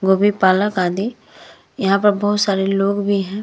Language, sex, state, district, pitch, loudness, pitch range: Hindi, female, Uttar Pradesh, Hamirpur, 200 Hz, -17 LUFS, 190-205 Hz